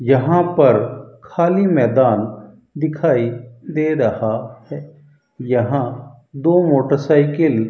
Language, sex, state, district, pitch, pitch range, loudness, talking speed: Hindi, male, Rajasthan, Bikaner, 140 Hz, 120-155 Hz, -17 LUFS, 95 wpm